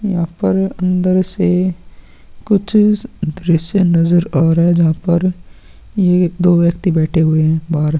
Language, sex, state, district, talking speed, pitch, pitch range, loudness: Hindi, male, Uttarakhand, Tehri Garhwal, 145 wpm, 175 Hz, 165-185 Hz, -14 LUFS